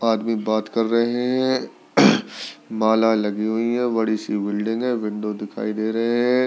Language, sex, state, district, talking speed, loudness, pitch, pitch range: Hindi, male, Delhi, New Delhi, 165 wpm, -21 LUFS, 110 Hz, 110-120 Hz